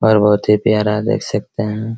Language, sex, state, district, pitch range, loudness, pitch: Hindi, male, Bihar, Araria, 105-110 Hz, -16 LUFS, 105 Hz